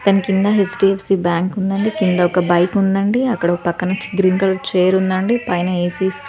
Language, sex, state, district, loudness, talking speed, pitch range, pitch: Telugu, female, Telangana, Karimnagar, -16 LUFS, 240 wpm, 180-195 Hz, 190 Hz